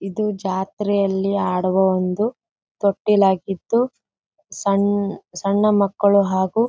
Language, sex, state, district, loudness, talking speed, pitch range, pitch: Kannada, female, Karnataka, Gulbarga, -20 LUFS, 80 wpm, 190-210 Hz, 200 Hz